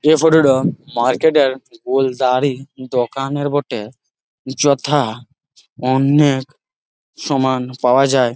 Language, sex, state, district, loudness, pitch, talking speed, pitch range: Bengali, male, West Bengal, Jalpaiguri, -16 LUFS, 135 Hz, 100 wpm, 130-145 Hz